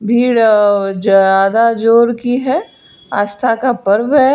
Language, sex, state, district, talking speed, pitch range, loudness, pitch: Hindi, female, Karnataka, Bangalore, 125 wpm, 205-245 Hz, -12 LUFS, 230 Hz